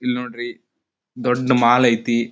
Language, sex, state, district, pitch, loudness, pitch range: Kannada, male, Karnataka, Dharwad, 120 Hz, -18 LUFS, 120-125 Hz